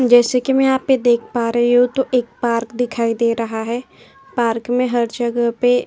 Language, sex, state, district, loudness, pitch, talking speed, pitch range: Hindi, female, Uttar Pradesh, Jyotiba Phule Nagar, -17 LUFS, 240 Hz, 215 wpm, 235-250 Hz